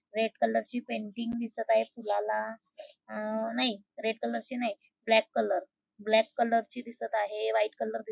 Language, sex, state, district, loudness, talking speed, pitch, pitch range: Marathi, female, Maharashtra, Nagpur, -31 LUFS, 170 wpm, 220 Hz, 215-235 Hz